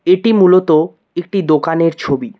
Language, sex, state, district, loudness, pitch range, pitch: Bengali, male, West Bengal, Cooch Behar, -13 LUFS, 165-195 Hz, 180 Hz